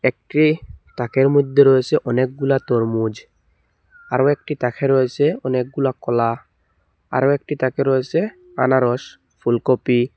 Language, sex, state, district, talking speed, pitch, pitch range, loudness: Bengali, male, Assam, Hailakandi, 105 wpm, 130 Hz, 120-140 Hz, -19 LUFS